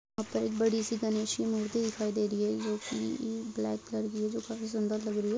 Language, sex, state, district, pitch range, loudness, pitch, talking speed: Hindi, female, Goa, North and South Goa, 210-225 Hz, -33 LUFS, 215 Hz, 265 wpm